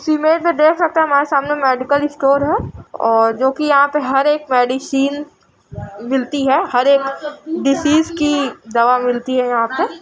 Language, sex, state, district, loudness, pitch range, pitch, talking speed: Hindi, female, Bihar, Jamui, -15 LUFS, 260-300 Hz, 280 Hz, 180 wpm